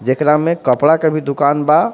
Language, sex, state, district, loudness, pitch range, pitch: Bhojpuri, male, Jharkhand, Palamu, -14 LUFS, 140-160 Hz, 150 Hz